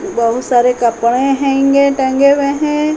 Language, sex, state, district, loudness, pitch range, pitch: Hindi, female, Uttar Pradesh, Hamirpur, -13 LUFS, 245-280 Hz, 275 Hz